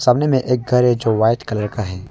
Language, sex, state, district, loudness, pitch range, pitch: Hindi, male, Arunachal Pradesh, Longding, -17 LUFS, 110-125 Hz, 120 Hz